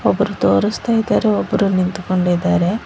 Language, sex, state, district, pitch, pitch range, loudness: Kannada, female, Karnataka, Bangalore, 185 Hz, 175-210 Hz, -17 LUFS